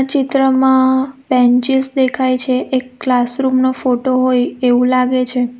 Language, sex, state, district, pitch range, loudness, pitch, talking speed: Gujarati, female, Gujarat, Valsad, 250-265 Hz, -14 LUFS, 255 Hz, 130 wpm